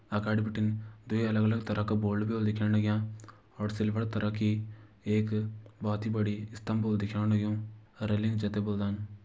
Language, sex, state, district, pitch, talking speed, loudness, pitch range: Garhwali, male, Uttarakhand, Uttarkashi, 105 Hz, 180 wpm, -31 LUFS, 105-110 Hz